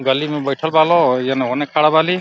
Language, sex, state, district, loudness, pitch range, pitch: Hindi, male, Uttar Pradesh, Deoria, -16 LUFS, 135-160 Hz, 150 Hz